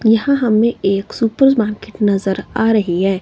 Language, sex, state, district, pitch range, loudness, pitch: Hindi, female, Himachal Pradesh, Shimla, 195-230 Hz, -16 LUFS, 220 Hz